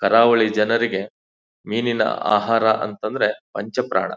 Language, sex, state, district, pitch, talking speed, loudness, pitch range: Kannada, male, Karnataka, Bijapur, 110 Hz, 115 wpm, -20 LUFS, 100-115 Hz